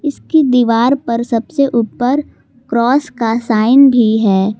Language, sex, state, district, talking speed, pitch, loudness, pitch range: Hindi, female, Jharkhand, Palamu, 130 wpm, 240 Hz, -13 LUFS, 230-275 Hz